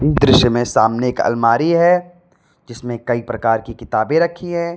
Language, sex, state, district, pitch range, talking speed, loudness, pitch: Hindi, male, Uttar Pradesh, Lalitpur, 115-170 Hz, 165 wpm, -16 LUFS, 125 Hz